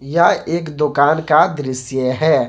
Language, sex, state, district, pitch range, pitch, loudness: Hindi, male, Jharkhand, Garhwa, 135-160 Hz, 150 Hz, -16 LUFS